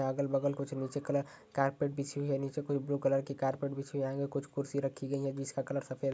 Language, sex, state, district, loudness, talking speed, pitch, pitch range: Hindi, male, Uttar Pradesh, Ghazipur, -35 LUFS, 275 wpm, 140 Hz, 135-140 Hz